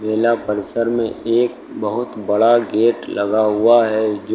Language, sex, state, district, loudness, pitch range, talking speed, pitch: Hindi, male, Uttar Pradesh, Lucknow, -17 LUFS, 105-115 Hz, 150 wpm, 115 Hz